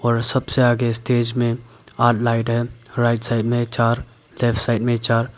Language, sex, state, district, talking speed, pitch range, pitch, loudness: Hindi, male, Arunachal Pradesh, Papum Pare, 165 wpm, 115-120 Hz, 120 Hz, -20 LUFS